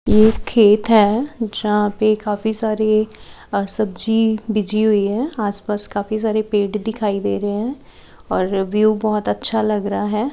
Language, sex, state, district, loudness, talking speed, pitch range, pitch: Hindi, female, Haryana, Charkhi Dadri, -18 LUFS, 155 wpm, 205-220 Hz, 215 Hz